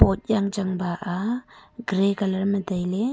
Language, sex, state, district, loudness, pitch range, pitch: Wancho, female, Arunachal Pradesh, Longding, -25 LUFS, 185-210 Hz, 195 Hz